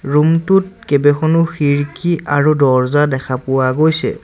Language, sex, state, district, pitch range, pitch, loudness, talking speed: Assamese, male, Assam, Sonitpur, 140-165 Hz, 145 Hz, -14 LUFS, 115 wpm